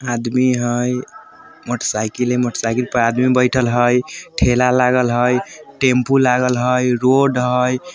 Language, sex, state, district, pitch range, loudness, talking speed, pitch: Bajjika, male, Bihar, Vaishali, 125-130 Hz, -16 LUFS, 130 wpm, 125 Hz